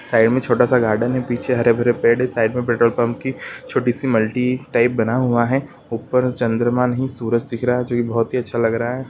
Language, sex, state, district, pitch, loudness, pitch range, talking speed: Hindi, male, Chhattisgarh, Kabirdham, 120 Hz, -19 LUFS, 115-125 Hz, 255 wpm